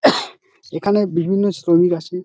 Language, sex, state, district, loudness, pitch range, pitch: Bengali, male, West Bengal, Dakshin Dinajpur, -18 LUFS, 170-205 Hz, 180 Hz